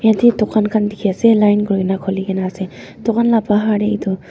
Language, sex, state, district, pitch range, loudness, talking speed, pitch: Nagamese, female, Nagaland, Dimapur, 190-220 Hz, -16 LUFS, 180 wpm, 210 Hz